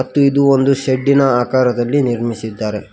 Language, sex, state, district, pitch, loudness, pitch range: Kannada, male, Karnataka, Koppal, 130 Hz, -15 LUFS, 120-140 Hz